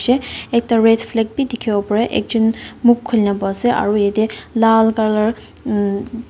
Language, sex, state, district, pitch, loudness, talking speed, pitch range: Nagamese, female, Nagaland, Dimapur, 225 Hz, -17 LUFS, 145 wpm, 215-235 Hz